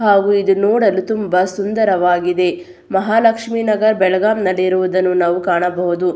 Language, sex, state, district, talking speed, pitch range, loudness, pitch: Kannada, female, Karnataka, Belgaum, 105 wpm, 180-210 Hz, -15 LUFS, 190 Hz